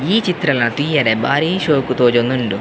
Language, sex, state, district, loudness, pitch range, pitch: Tulu, male, Karnataka, Dakshina Kannada, -16 LUFS, 120-160 Hz, 140 Hz